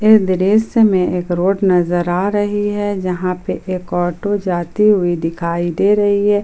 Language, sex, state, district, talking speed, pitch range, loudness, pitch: Hindi, female, Jharkhand, Ranchi, 175 wpm, 175-205 Hz, -16 LUFS, 185 Hz